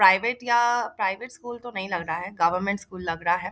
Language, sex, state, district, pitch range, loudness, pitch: Hindi, female, Bihar, Jahanabad, 180-240 Hz, -25 LUFS, 190 Hz